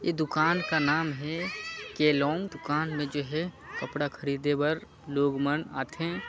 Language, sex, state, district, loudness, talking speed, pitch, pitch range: Chhattisgarhi, male, Chhattisgarh, Sarguja, -29 LUFS, 155 wpm, 150 Hz, 145-165 Hz